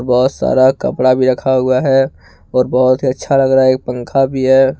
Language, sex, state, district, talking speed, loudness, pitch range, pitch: Hindi, male, Jharkhand, Ranchi, 225 wpm, -13 LUFS, 125-135 Hz, 130 Hz